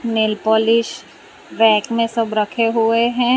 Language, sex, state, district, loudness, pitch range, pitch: Hindi, female, Gujarat, Valsad, -17 LUFS, 220-230 Hz, 230 Hz